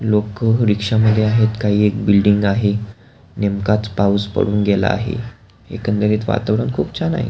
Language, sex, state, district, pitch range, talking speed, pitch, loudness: Marathi, male, Maharashtra, Pune, 105-115 Hz, 150 wpm, 105 Hz, -17 LUFS